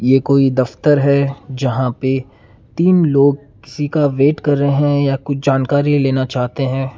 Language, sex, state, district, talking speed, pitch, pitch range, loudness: Hindi, male, Karnataka, Bangalore, 180 wpm, 140 Hz, 130-145 Hz, -15 LUFS